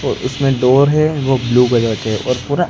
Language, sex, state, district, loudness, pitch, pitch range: Hindi, male, Gujarat, Gandhinagar, -14 LUFS, 130 Hz, 120-140 Hz